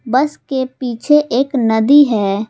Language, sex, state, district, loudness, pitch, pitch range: Hindi, female, Jharkhand, Palamu, -14 LUFS, 260 Hz, 225-280 Hz